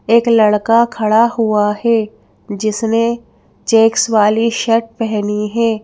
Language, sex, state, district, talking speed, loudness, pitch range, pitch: Hindi, female, Madhya Pradesh, Bhopal, 115 wpm, -14 LUFS, 215-230 Hz, 225 Hz